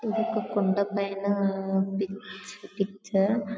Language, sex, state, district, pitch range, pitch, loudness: Telugu, female, Telangana, Karimnagar, 195-205 Hz, 200 Hz, -28 LUFS